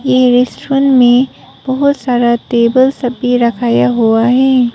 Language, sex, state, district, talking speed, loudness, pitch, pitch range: Hindi, female, Arunachal Pradesh, Papum Pare, 125 wpm, -11 LUFS, 245 Hz, 235-260 Hz